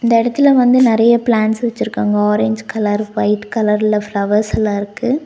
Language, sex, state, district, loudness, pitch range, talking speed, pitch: Tamil, female, Tamil Nadu, Nilgiris, -15 LUFS, 205-235 Hz, 150 wpm, 215 Hz